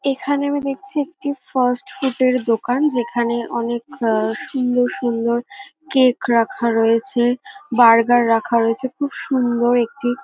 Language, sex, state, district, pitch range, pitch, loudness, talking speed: Bengali, female, West Bengal, North 24 Parganas, 235-275 Hz, 245 Hz, -18 LUFS, 135 wpm